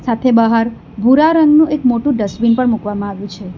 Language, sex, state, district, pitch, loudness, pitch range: Gujarati, female, Gujarat, Valsad, 235 Hz, -13 LUFS, 205-260 Hz